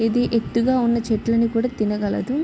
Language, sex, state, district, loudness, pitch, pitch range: Telugu, female, Andhra Pradesh, Srikakulam, -21 LUFS, 230 Hz, 225-245 Hz